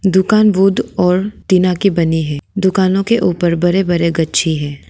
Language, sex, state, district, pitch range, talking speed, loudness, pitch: Hindi, female, Arunachal Pradesh, Lower Dibang Valley, 170-195 Hz, 170 wpm, -14 LUFS, 185 Hz